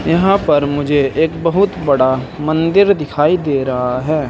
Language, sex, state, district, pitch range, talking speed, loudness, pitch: Hindi, male, Uttar Pradesh, Saharanpur, 140-165 Hz, 155 wpm, -14 LUFS, 150 Hz